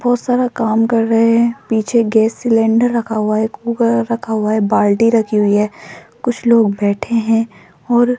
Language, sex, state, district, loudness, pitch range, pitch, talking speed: Hindi, female, Rajasthan, Jaipur, -15 LUFS, 215-235 Hz, 225 Hz, 185 wpm